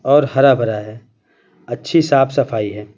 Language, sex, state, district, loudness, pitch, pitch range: Hindi, male, Bihar, Patna, -15 LUFS, 120 Hz, 110-140 Hz